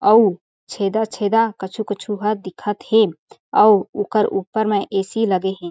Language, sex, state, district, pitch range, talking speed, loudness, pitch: Chhattisgarhi, female, Chhattisgarh, Jashpur, 195-220 Hz, 135 wpm, -19 LUFS, 205 Hz